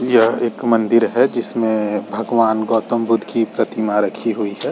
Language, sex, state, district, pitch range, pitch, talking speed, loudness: Hindi, male, Uttar Pradesh, Varanasi, 110-115 Hz, 115 Hz, 165 wpm, -17 LUFS